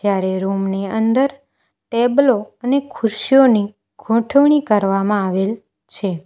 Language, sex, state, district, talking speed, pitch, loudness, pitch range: Gujarati, female, Gujarat, Valsad, 105 wpm, 220 Hz, -17 LUFS, 195-265 Hz